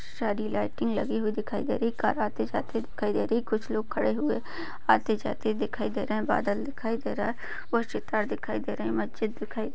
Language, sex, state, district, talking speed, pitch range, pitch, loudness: Hindi, female, West Bengal, Dakshin Dinajpur, 235 wpm, 215-230 Hz, 220 Hz, -30 LUFS